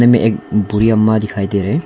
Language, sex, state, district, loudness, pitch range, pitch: Hindi, male, Arunachal Pradesh, Longding, -14 LUFS, 105-115 Hz, 110 Hz